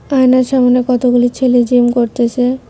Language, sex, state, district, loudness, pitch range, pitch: Bengali, female, West Bengal, Cooch Behar, -12 LUFS, 245-255 Hz, 250 Hz